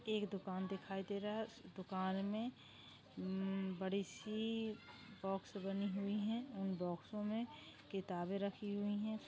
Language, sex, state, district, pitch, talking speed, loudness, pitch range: Hindi, female, Maharashtra, Dhule, 200 Hz, 135 wpm, -44 LUFS, 190-215 Hz